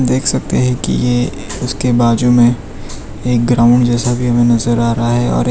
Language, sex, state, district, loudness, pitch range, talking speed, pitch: Hindi, male, Gujarat, Valsad, -13 LUFS, 115-120 Hz, 215 wpm, 120 Hz